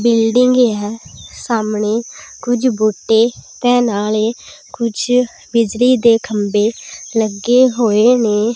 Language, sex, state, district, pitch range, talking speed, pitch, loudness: Punjabi, female, Punjab, Pathankot, 215-245 Hz, 100 wpm, 230 Hz, -15 LUFS